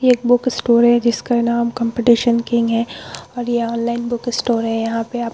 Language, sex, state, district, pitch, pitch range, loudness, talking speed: Hindi, female, Bihar, Vaishali, 235 Hz, 235-240 Hz, -17 LUFS, 225 wpm